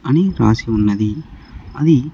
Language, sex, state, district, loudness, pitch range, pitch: Telugu, male, Andhra Pradesh, Sri Satya Sai, -16 LUFS, 105-155 Hz, 115 Hz